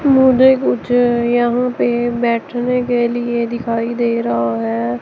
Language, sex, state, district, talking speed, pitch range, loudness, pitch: Hindi, male, Chandigarh, Chandigarh, 130 wpm, 235-245 Hz, -16 LUFS, 240 Hz